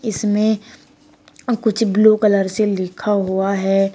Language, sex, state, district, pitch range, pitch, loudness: Hindi, female, Uttar Pradesh, Shamli, 195-220 Hz, 210 Hz, -17 LUFS